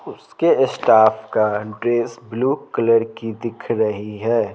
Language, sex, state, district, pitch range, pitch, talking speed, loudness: Hindi, male, Bihar, Patna, 110-115 Hz, 115 Hz, 130 wpm, -19 LUFS